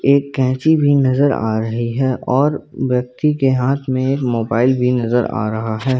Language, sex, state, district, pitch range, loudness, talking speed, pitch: Hindi, male, Jharkhand, Ranchi, 120-135 Hz, -17 LUFS, 190 wpm, 130 Hz